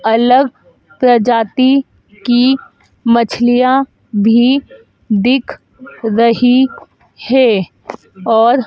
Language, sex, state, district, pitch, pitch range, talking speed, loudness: Hindi, female, Madhya Pradesh, Dhar, 245 Hz, 230-265 Hz, 60 wpm, -12 LUFS